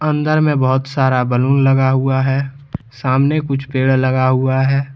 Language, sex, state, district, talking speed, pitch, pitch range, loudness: Hindi, male, Jharkhand, Deoghar, 170 wpm, 135 Hz, 130-140 Hz, -15 LUFS